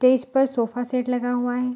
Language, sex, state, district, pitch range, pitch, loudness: Hindi, female, Bihar, Saharsa, 245-255 Hz, 250 Hz, -23 LUFS